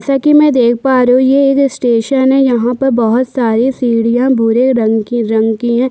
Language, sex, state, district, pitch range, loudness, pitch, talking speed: Hindi, female, Chhattisgarh, Sukma, 235-265 Hz, -11 LUFS, 250 Hz, 225 wpm